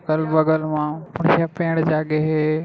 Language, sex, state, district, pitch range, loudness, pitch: Chhattisgarhi, male, Chhattisgarh, Raigarh, 155-165 Hz, -20 LUFS, 155 Hz